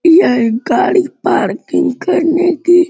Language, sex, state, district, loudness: Hindi, male, Uttar Pradesh, Gorakhpur, -13 LUFS